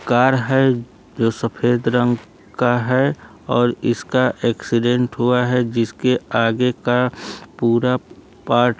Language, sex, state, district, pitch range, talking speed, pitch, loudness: Hindi, male, Bihar, Kaimur, 115-125 Hz, 125 wpm, 120 Hz, -18 LUFS